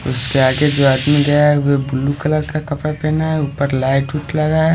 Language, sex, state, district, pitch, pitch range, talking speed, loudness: Hindi, male, Haryana, Rohtak, 145 Hz, 135-155 Hz, 190 wpm, -15 LUFS